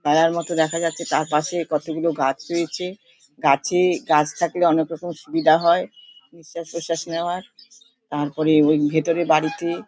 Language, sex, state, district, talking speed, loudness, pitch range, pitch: Bengali, female, West Bengal, Paschim Medinipur, 145 wpm, -21 LUFS, 155-170 Hz, 165 Hz